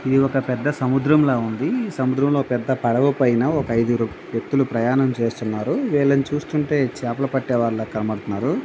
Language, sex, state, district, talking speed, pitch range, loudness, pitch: Telugu, male, Andhra Pradesh, Visakhapatnam, 155 wpm, 115-140 Hz, -21 LUFS, 130 Hz